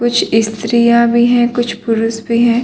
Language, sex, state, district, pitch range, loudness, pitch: Hindi, male, Uttar Pradesh, Muzaffarnagar, 225-240 Hz, -13 LUFS, 235 Hz